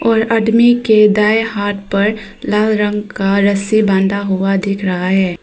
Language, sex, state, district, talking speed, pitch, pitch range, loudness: Hindi, female, Arunachal Pradesh, Papum Pare, 165 wpm, 205 Hz, 195-215 Hz, -14 LUFS